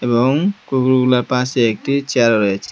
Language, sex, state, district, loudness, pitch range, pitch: Bengali, male, Assam, Hailakandi, -16 LUFS, 120-135 Hz, 125 Hz